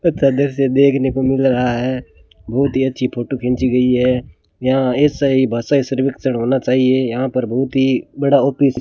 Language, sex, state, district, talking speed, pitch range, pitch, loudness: Hindi, male, Rajasthan, Bikaner, 190 wpm, 125-135 Hz, 130 Hz, -16 LUFS